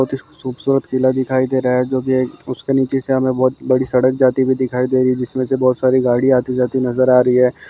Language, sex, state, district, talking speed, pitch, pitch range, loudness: Hindi, male, Maharashtra, Chandrapur, 255 wpm, 130 Hz, 125-130 Hz, -16 LUFS